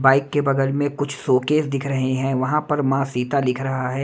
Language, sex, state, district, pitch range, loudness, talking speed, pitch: Hindi, male, Odisha, Nuapada, 130-145 Hz, -21 LUFS, 240 wpm, 135 Hz